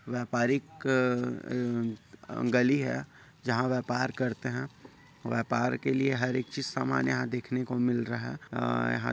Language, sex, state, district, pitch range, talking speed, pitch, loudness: Hindi, male, Chhattisgarh, Kabirdham, 120-130 Hz, 150 wpm, 125 Hz, -30 LUFS